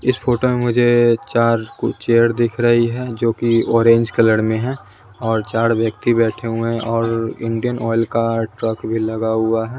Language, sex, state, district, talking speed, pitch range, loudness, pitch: Hindi, male, Bihar, West Champaran, 185 wpm, 115-120 Hz, -17 LUFS, 115 Hz